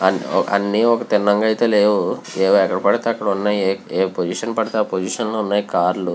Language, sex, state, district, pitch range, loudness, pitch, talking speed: Telugu, male, Andhra Pradesh, Visakhapatnam, 95-110 Hz, -18 LUFS, 105 Hz, 175 wpm